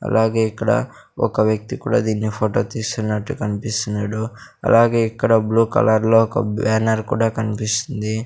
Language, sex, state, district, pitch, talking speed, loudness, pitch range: Telugu, male, Andhra Pradesh, Sri Satya Sai, 110 Hz, 125 wpm, -19 LUFS, 110-115 Hz